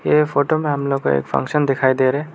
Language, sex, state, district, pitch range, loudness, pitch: Hindi, male, Arunachal Pradesh, Lower Dibang Valley, 130-150 Hz, -18 LUFS, 140 Hz